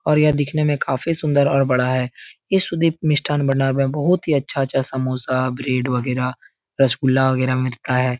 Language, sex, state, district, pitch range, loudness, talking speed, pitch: Hindi, male, Uttar Pradesh, Etah, 130-150 Hz, -19 LUFS, 175 wpm, 135 Hz